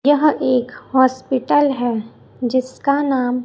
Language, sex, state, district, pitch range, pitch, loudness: Hindi, male, Chhattisgarh, Raipur, 250-280 Hz, 260 Hz, -18 LUFS